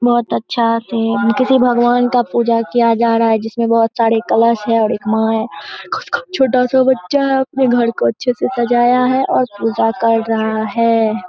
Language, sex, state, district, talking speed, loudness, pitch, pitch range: Hindi, female, Bihar, Saharsa, 190 wpm, -15 LUFS, 230 Hz, 225-245 Hz